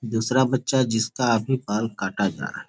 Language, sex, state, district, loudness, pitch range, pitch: Hindi, male, Bihar, Gopalganj, -23 LUFS, 115-130 Hz, 120 Hz